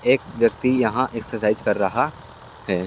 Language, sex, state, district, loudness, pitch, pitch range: Hindi, male, Bihar, Lakhisarai, -22 LUFS, 115 Hz, 105-125 Hz